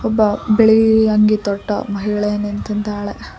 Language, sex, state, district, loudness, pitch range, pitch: Kannada, female, Karnataka, Koppal, -16 LUFS, 205-220 Hz, 210 Hz